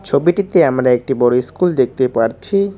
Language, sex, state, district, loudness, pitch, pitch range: Bengali, male, West Bengal, Cooch Behar, -15 LUFS, 130 Hz, 125-180 Hz